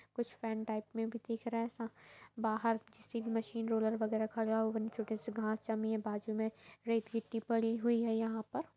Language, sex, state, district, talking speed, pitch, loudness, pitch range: Hindi, female, Bihar, Saran, 200 wpm, 225 Hz, -38 LUFS, 220-230 Hz